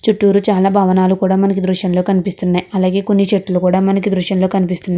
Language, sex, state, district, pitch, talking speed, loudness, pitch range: Telugu, female, Andhra Pradesh, Guntur, 190 Hz, 180 wpm, -14 LUFS, 185-195 Hz